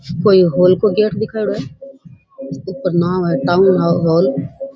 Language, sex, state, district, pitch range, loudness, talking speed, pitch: Rajasthani, female, Rajasthan, Churu, 170-215 Hz, -15 LUFS, 165 wpm, 185 Hz